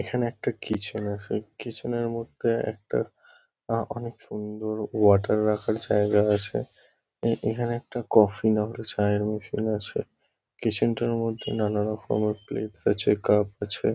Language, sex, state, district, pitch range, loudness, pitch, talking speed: Bengali, male, West Bengal, Kolkata, 105-115 Hz, -26 LUFS, 110 Hz, 140 wpm